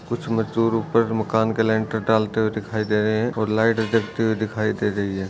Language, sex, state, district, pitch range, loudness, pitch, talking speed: Hindi, male, Chhattisgarh, Bastar, 110-115 Hz, -22 LUFS, 110 Hz, 225 wpm